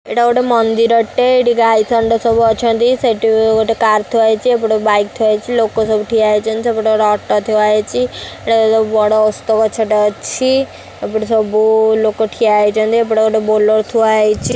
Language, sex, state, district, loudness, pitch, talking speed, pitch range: Odia, female, Odisha, Khordha, -13 LUFS, 220 Hz, 170 wpm, 215-230 Hz